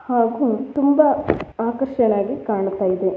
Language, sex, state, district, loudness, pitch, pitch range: Kannada, female, Karnataka, Dharwad, -20 LUFS, 235 Hz, 200-270 Hz